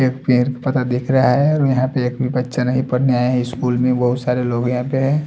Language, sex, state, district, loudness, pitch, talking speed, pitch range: Hindi, male, Delhi, New Delhi, -18 LUFS, 125 Hz, 260 wpm, 125-130 Hz